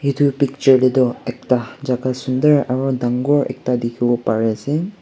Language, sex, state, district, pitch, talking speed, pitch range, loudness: Nagamese, male, Nagaland, Kohima, 130 Hz, 155 wpm, 125-140 Hz, -18 LUFS